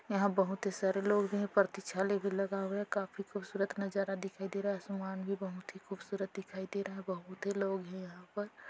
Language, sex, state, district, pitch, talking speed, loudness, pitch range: Hindi, female, Chhattisgarh, Sarguja, 195 Hz, 195 wpm, -37 LUFS, 190-200 Hz